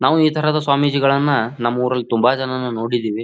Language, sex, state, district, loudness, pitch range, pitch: Kannada, male, Karnataka, Bijapur, -18 LUFS, 120-145 Hz, 130 Hz